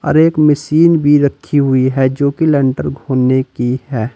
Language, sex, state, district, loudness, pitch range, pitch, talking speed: Hindi, male, Uttar Pradesh, Saharanpur, -13 LUFS, 130-150 Hz, 140 Hz, 160 wpm